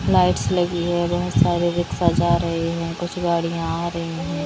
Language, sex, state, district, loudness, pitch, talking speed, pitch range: Hindi, female, Haryana, Rohtak, -21 LUFS, 170 Hz, 175 wpm, 165-175 Hz